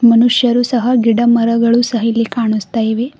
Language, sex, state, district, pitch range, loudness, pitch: Kannada, female, Karnataka, Bidar, 230-240 Hz, -13 LUFS, 235 Hz